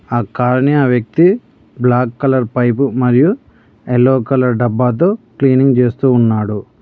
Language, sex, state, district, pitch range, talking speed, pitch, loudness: Telugu, male, Telangana, Mahabubabad, 120-135 Hz, 140 wpm, 125 Hz, -13 LUFS